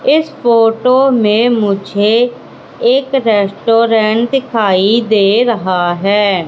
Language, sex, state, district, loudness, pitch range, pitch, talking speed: Hindi, female, Madhya Pradesh, Katni, -12 LUFS, 205-245 Hz, 225 Hz, 90 wpm